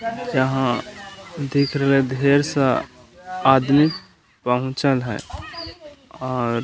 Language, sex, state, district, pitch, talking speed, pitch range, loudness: Magahi, male, Bihar, Gaya, 140 Hz, 90 wpm, 130-165 Hz, -20 LUFS